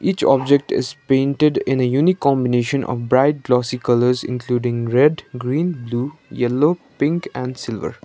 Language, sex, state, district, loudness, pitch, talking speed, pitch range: English, male, Sikkim, Gangtok, -19 LUFS, 130 Hz, 150 wpm, 125-145 Hz